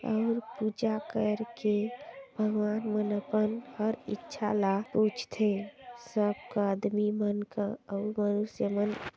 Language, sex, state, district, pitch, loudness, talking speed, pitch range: Hindi, female, Chhattisgarh, Sarguja, 215 Hz, -31 LUFS, 125 wpm, 205-225 Hz